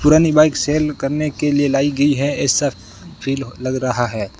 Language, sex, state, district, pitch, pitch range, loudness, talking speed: Hindi, male, Rajasthan, Bikaner, 140 Hz, 125-150 Hz, -17 LUFS, 190 wpm